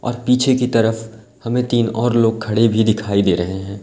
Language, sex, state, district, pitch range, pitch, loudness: Hindi, male, Uttar Pradesh, Lalitpur, 110-120 Hz, 115 Hz, -17 LUFS